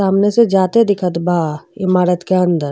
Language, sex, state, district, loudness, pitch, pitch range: Bhojpuri, female, Uttar Pradesh, Gorakhpur, -15 LUFS, 185 Hz, 175-195 Hz